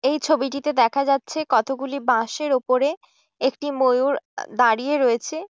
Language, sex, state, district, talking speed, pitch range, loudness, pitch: Bengali, female, West Bengal, Jhargram, 130 wpm, 255-290 Hz, -21 LUFS, 275 Hz